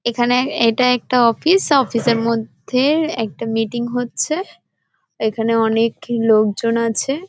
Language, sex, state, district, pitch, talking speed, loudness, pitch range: Bengali, female, West Bengal, Paschim Medinipur, 235 Hz, 125 wpm, -17 LUFS, 230-255 Hz